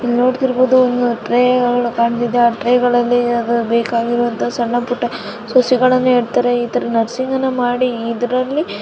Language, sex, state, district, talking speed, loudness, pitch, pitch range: Kannada, female, Karnataka, Dharwad, 115 wpm, -15 LUFS, 245 Hz, 235-250 Hz